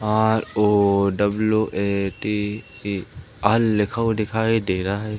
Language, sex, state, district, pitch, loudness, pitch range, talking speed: Hindi, male, Madhya Pradesh, Umaria, 105 Hz, -21 LUFS, 100-110 Hz, 90 wpm